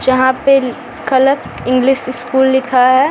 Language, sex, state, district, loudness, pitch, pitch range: Hindi, male, Bihar, Samastipur, -13 LUFS, 260 Hz, 255-270 Hz